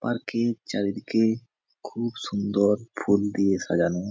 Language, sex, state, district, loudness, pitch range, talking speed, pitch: Bengali, male, West Bengal, Jhargram, -25 LUFS, 100-115 Hz, 115 wpm, 100 Hz